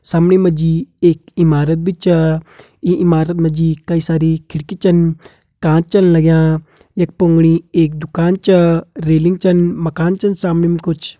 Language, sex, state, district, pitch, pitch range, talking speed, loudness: Hindi, male, Uttarakhand, Uttarkashi, 165 Hz, 160-175 Hz, 160 wpm, -14 LUFS